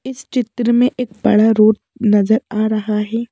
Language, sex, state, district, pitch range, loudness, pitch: Hindi, female, Madhya Pradesh, Bhopal, 215-245 Hz, -16 LUFS, 220 Hz